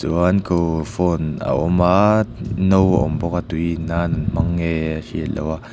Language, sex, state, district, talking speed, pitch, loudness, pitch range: Mizo, male, Mizoram, Aizawl, 210 wpm, 85 Hz, -19 LUFS, 80-95 Hz